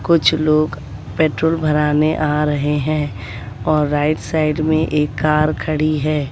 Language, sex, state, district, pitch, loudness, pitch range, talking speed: Hindi, female, Bihar, West Champaran, 150 Hz, -17 LUFS, 150-155 Hz, 140 wpm